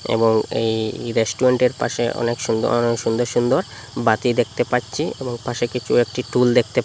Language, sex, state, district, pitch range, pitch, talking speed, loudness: Bengali, male, Assam, Hailakandi, 115-125 Hz, 120 Hz, 160 wpm, -20 LUFS